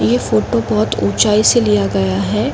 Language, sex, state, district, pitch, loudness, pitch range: Hindi, female, Uttar Pradesh, Jalaun, 105 Hz, -14 LUFS, 100-120 Hz